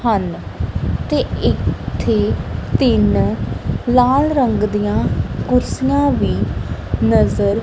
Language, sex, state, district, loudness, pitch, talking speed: Punjabi, female, Punjab, Kapurthala, -17 LUFS, 205 Hz, 80 wpm